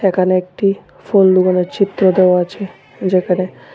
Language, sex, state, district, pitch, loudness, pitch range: Bengali, male, Tripura, West Tripura, 185 Hz, -15 LUFS, 180-195 Hz